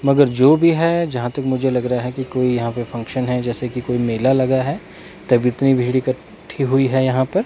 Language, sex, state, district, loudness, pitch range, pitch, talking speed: Hindi, male, Himachal Pradesh, Shimla, -18 LUFS, 125-135 Hz, 130 Hz, 240 wpm